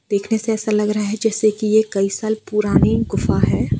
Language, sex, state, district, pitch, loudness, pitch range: Hindi, female, Gujarat, Valsad, 215 Hz, -18 LUFS, 210-220 Hz